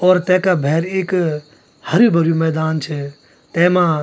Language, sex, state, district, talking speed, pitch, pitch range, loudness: Garhwali, male, Uttarakhand, Tehri Garhwal, 135 wpm, 165 Hz, 155-180 Hz, -16 LUFS